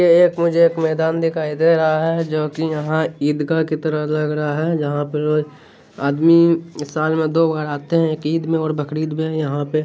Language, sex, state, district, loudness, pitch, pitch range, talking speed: Hindi, male, Bihar, Saharsa, -18 LUFS, 155 Hz, 150-165 Hz, 220 wpm